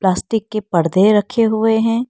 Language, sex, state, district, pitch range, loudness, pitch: Hindi, female, Arunachal Pradesh, Lower Dibang Valley, 195-225 Hz, -16 LUFS, 220 Hz